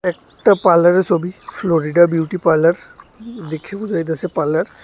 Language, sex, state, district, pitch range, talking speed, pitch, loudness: Bengali, male, Tripura, West Tripura, 165-190 Hz, 135 wpm, 175 Hz, -16 LUFS